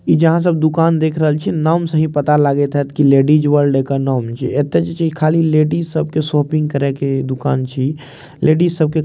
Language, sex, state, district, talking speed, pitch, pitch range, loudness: Maithili, male, Bihar, Purnia, 240 wpm, 150 Hz, 140-160 Hz, -15 LUFS